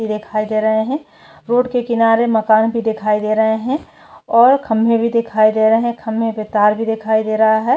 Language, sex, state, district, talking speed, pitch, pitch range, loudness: Hindi, female, Chhattisgarh, Kabirdham, 225 wpm, 220 Hz, 215-230 Hz, -16 LUFS